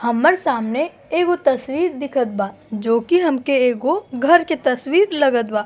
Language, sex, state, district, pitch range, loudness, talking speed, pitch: Bhojpuri, female, Uttar Pradesh, Gorakhpur, 240-325 Hz, -18 LUFS, 160 wpm, 275 Hz